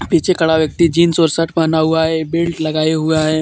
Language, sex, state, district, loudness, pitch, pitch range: Hindi, male, Jharkhand, Deoghar, -15 LUFS, 160 Hz, 155-165 Hz